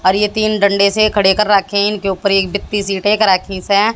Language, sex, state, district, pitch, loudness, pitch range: Hindi, female, Haryana, Jhajjar, 200 Hz, -14 LUFS, 195-210 Hz